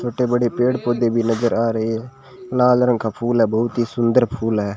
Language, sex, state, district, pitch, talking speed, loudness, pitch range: Hindi, male, Rajasthan, Bikaner, 120 Hz, 240 wpm, -19 LUFS, 115-125 Hz